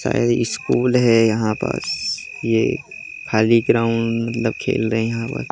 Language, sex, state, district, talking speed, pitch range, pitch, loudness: Hindi, male, Chhattisgarh, Jashpur, 150 wpm, 110-115 Hz, 115 Hz, -19 LUFS